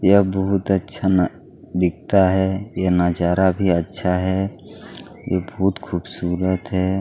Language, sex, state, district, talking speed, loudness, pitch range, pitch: Hindi, male, Chhattisgarh, Kabirdham, 130 wpm, -20 LUFS, 90-95 Hz, 95 Hz